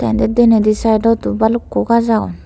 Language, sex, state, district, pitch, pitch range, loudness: Chakma, female, Tripura, Unakoti, 225 Hz, 215-230 Hz, -14 LUFS